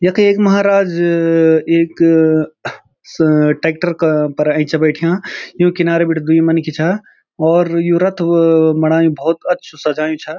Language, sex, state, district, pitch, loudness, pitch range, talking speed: Garhwali, male, Uttarakhand, Uttarkashi, 165 Hz, -14 LUFS, 155-175 Hz, 140 wpm